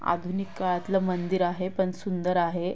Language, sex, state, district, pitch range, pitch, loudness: Marathi, female, Maharashtra, Pune, 175-190 Hz, 180 Hz, -28 LUFS